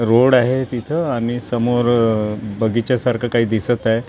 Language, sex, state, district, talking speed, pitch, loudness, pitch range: Marathi, male, Maharashtra, Gondia, 145 wpm, 120 Hz, -18 LUFS, 115-125 Hz